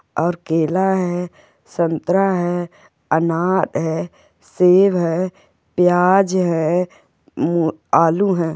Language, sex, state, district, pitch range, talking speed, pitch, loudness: Hindi, female, Goa, North and South Goa, 165-185 Hz, 100 wpm, 175 Hz, -18 LUFS